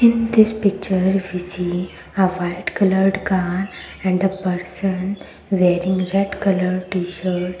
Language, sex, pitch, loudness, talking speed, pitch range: English, female, 185 Hz, -20 LUFS, 125 wpm, 180-195 Hz